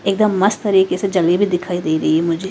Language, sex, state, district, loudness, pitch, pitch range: Hindi, female, Haryana, Rohtak, -16 LUFS, 185 Hz, 170-195 Hz